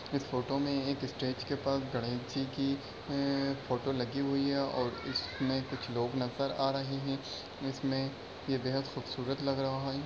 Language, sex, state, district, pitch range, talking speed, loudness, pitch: Hindi, male, Bihar, Darbhanga, 130-140 Hz, 180 wpm, -35 LUFS, 135 Hz